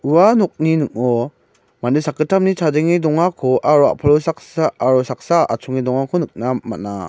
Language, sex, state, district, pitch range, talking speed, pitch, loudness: Garo, male, Meghalaya, West Garo Hills, 125-160 Hz, 135 wpm, 145 Hz, -17 LUFS